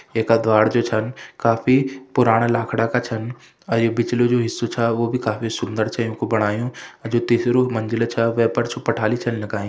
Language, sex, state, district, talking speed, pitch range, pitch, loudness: Hindi, male, Uttarakhand, Uttarkashi, 225 wpm, 115-120 Hz, 115 Hz, -20 LUFS